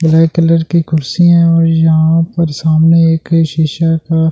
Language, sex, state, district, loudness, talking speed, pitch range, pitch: Hindi, male, Delhi, New Delhi, -11 LUFS, 150 wpm, 160-165 Hz, 165 Hz